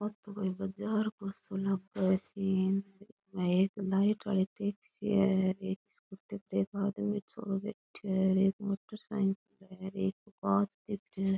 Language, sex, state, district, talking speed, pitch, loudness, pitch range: Rajasthani, female, Rajasthan, Nagaur, 140 wpm, 195 Hz, -33 LUFS, 195-205 Hz